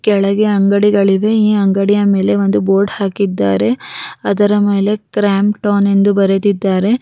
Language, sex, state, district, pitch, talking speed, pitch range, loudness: Kannada, female, Karnataka, Raichur, 200 Hz, 100 wpm, 195-205 Hz, -13 LUFS